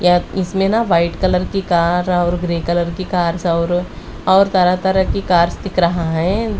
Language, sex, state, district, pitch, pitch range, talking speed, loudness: Hindi, female, Delhi, New Delhi, 180 Hz, 170-190 Hz, 180 wpm, -16 LUFS